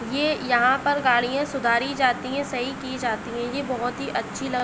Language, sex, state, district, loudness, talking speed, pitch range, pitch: Hindi, female, Uttar Pradesh, Muzaffarnagar, -24 LUFS, 220 wpm, 245-275 Hz, 255 Hz